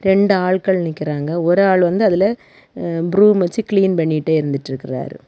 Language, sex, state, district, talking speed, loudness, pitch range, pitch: Tamil, female, Tamil Nadu, Kanyakumari, 150 wpm, -16 LUFS, 160-195 Hz, 180 Hz